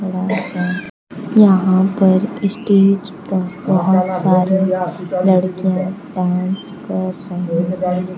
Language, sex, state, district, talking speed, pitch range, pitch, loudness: Hindi, female, Bihar, Kaimur, 80 wpm, 185-195 Hz, 185 Hz, -16 LUFS